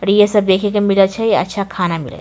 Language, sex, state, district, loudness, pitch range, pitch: Maithili, female, Bihar, Samastipur, -15 LUFS, 185-205 Hz, 195 Hz